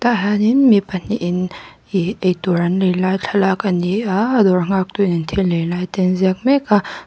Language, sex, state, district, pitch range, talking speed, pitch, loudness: Mizo, female, Mizoram, Aizawl, 180-205 Hz, 210 wpm, 190 Hz, -17 LUFS